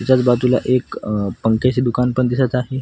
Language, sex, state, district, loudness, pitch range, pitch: Marathi, male, Maharashtra, Washim, -18 LUFS, 120-130 Hz, 125 Hz